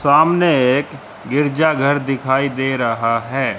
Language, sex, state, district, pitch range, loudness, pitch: Hindi, male, Haryana, Rohtak, 130-145 Hz, -17 LUFS, 135 Hz